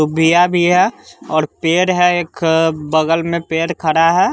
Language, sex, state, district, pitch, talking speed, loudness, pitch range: Hindi, male, Bihar, West Champaran, 165 Hz, 165 wpm, -15 LUFS, 160-175 Hz